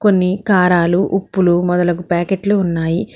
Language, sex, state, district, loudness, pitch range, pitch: Telugu, female, Telangana, Hyderabad, -15 LUFS, 175-195 Hz, 180 Hz